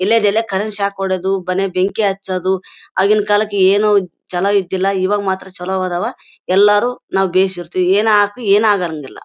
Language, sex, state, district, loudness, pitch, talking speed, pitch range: Kannada, female, Karnataka, Bellary, -16 LUFS, 195 Hz, 145 wpm, 185-205 Hz